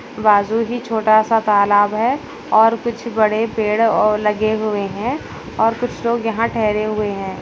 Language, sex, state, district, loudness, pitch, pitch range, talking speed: Hindi, female, Bihar, Saharsa, -17 LUFS, 220 Hz, 210-230 Hz, 170 wpm